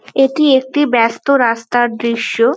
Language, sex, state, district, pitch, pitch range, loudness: Bengali, female, West Bengal, North 24 Parganas, 245 Hz, 235-270 Hz, -14 LUFS